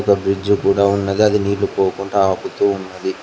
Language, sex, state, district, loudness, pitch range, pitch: Telugu, male, Telangana, Mahabubabad, -17 LUFS, 95-100 Hz, 100 Hz